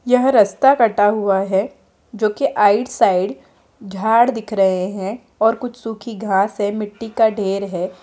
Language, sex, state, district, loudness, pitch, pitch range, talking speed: Hindi, female, Bihar, Muzaffarpur, -17 LUFS, 210 Hz, 195-230 Hz, 165 wpm